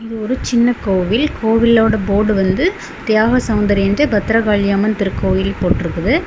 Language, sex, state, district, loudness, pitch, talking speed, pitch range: Tamil, female, Tamil Nadu, Kanyakumari, -15 LUFS, 215 Hz, 135 wpm, 200-230 Hz